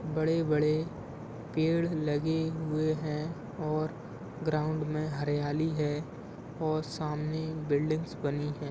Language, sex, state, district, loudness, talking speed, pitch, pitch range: Hindi, male, Uttar Pradesh, Deoria, -32 LUFS, 110 wpm, 155 Hz, 150-160 Hz